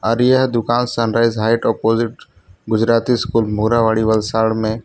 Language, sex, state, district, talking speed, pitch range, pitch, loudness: Hindi, male, Gujarat, Valsad, 150 wpm, 110-115 Hz, 115 Hz, -16 LUFS